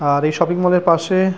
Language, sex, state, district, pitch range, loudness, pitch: Bengali, male, West Bengal, Purulia, 155-180 Hz, -16 LUFS, 175 Hz